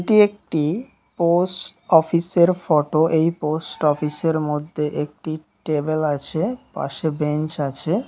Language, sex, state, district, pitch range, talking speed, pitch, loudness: Bengali, male, West Bengal, Dakshin Dinajpur, 150-170 Hz, 120 wpm, 155 Hz, -21 LUFS